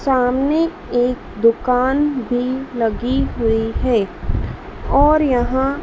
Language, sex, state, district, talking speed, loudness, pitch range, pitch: Hindi, female, Madhya Pradesh, Dhar, 90 wpm, -18 LUFS, 240-275 Hz, 255 Hz